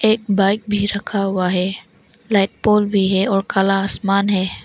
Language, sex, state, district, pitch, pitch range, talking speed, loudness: Hindi, female, Arunachal Pradesh, Longding, 195 Hz, 195-205 Hz, 180 wpm, -17 LUFS